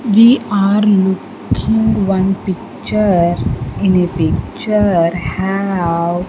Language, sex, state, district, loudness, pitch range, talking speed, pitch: English, female, Andhra Pradesh, Sri Satya Sai, -14 LUFS, 175-210 Hz, 95 wpm, 195 Hz